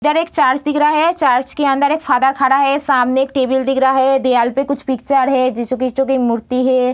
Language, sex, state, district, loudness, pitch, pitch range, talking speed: Hindi, female, Bihar, Saharsa, -15 LUFS, 265 Hz, 255-280 Hz, 235 wpm